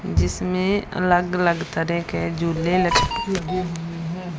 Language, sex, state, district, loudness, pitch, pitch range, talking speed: Hindi, female, Punjab, Fazilka, -22 LUFS, 175 Hz, 170-185 Hz, 110 wpm